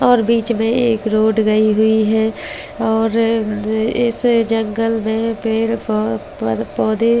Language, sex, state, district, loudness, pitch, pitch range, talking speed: Hindi, female, Delhi, New Delhi, -17 LUFS, 220 Hz, 220-230 Hz, 165 wpm